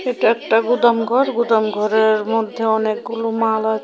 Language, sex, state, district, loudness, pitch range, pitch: Bengali, female, Tripura, West Tripura, -17 LUFS, 220-235 Hz, 225 Hz